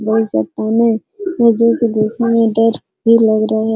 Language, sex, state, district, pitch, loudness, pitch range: Hindi, female, Bihar, Araria, 225 Hz, -14 LUFS, 220-230 Hz